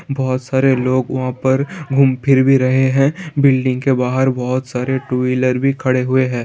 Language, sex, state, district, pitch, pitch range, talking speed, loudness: Hindi, male, Bihar, Saran, 130 Hz, 130-135 Hz, 205 wpm, -16 LUFS